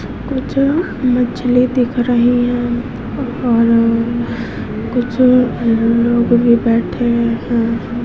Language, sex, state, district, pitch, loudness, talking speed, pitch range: Hindi, female, Chhattisgarh, Raipur, 240 Hz, -15 LUFS, 80 wpm, 235-250 Hz